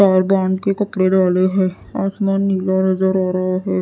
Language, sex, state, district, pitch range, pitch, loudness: Hindi, female, Odisha, Nuapada, 185-195 Hz, 190 Hz, -17 LUFS